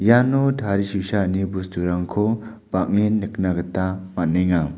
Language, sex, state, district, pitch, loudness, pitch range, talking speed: Garo, male, Meghalaya, West Garo Hills, 95 Hz, -22 LUFS, 90-105 Hz, 90 wpm